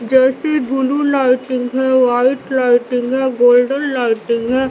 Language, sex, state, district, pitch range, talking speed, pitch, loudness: Hindi, female, Bihar, Katihar, 245-265 Hz, 125 wpm, 260 Hz, -15 LUFS